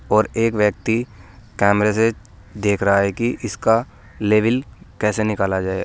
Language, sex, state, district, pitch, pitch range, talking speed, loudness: Hindi, male, Uttar Pradesh, Saharanpur, 105 Hz, 100-115 Hz, 145 wpm, -19 LUFS